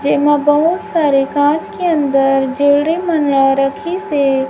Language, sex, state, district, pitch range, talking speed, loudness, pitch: Hindi, female, Chhattisgarh, Raipur, 275-320 Hz, 120 wpm, -14 LUFS, 290 Hz